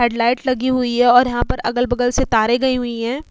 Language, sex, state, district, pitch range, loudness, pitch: Hindi, female, Uttar Pradesh, Hamirpur, 240-255 Hz, -17 LUFS, 245 Hz